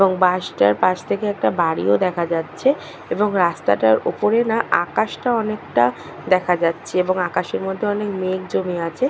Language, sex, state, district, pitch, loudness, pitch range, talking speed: Bengali, female, West Bengal, Purulia, 185 Hz, -20 LUFS, 170-205 Hz, 165 wpm